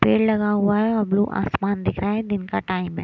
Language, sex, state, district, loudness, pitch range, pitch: Hindi, female, Punjab, Kapurthala, -22 LUFS, 195-215 Hz, 205 Hz